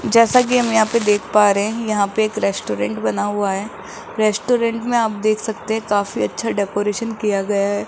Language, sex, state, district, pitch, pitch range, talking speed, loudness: Hindi, female, Rajasthan, Jaipur, 210 Hz, 200-225 Hz, 215 wpm, -18 LUFS